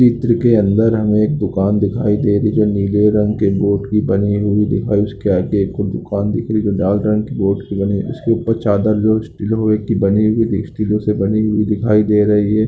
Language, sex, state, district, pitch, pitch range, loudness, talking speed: Hindi, male, Bihar, Lakhisarai, 105 Hz, 100-110 Hz, -16 LUFS, 245 wpm